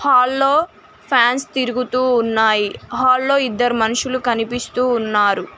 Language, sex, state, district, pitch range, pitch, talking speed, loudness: Telugu, female, Telangana, Mahabubabad, 230-255 Hz, 250 Hz, 120 wpm, -17 LUFS